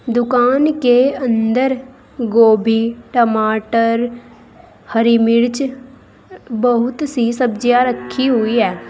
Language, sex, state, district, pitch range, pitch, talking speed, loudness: Hindi, female, Uttar Pradesh, Saharanpur, 230-255 Hz, 240 Hz, 90 wpm, -15 LUFS